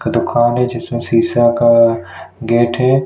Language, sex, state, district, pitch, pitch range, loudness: Hindi, male, Chhattisgarh, Kabirdham, 120 Hz, 115-120 Hz, -14 LUFS